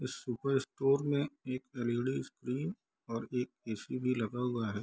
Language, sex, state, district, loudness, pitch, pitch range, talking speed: Hindi, male, Bihar, Darbhanga, -36 LUFS, 125 Hz, 120-135 Hz, 160 wpm